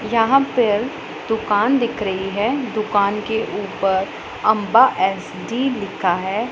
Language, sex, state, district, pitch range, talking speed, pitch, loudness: Hindi, female, Punjab, Pathankot, 200-240 Hz, 120 wpm, 215 Hz, -19 LUFS